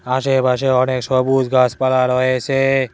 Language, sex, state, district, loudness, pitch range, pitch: Bengali, male, West Bengal, Cooch Behar, -16 LUFS, 125-135 Hz, 130 Hz